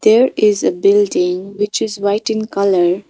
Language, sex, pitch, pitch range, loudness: English, female, 210 Hz, 200-225 Hz, -15 LUFS